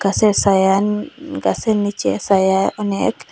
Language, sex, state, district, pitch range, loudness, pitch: Bengali, female, Assam, Hailakandi, 195-210 Hz, -17 LUFS, 205 Hz